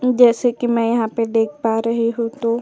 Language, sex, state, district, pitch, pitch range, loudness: Hindi, female, Uttar Pradesh, Etah, 230 Hz, 230-240 Hz, -18 LUFS